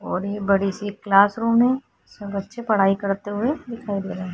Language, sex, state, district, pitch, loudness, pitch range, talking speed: Hindi, female, Goa, North and South Goa, 205 Hz, -22 LUFS, 195-230 Hz, 205 wpm